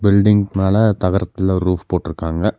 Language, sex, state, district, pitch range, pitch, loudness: Tamil, male, Tamil Nadu, Nilgiris, 90-100 Hz, 95 Hz, -17 LUFS